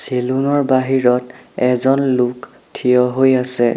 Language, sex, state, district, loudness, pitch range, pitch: Assamese, male, Assam, Sonitpur, -16 LUFS, 125-130 Hz, 125 Hz